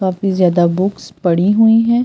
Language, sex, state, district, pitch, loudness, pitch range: Hindi, female, Delhi, New Delhi, 190 Hz, -14 LUFS, 180-220 Hz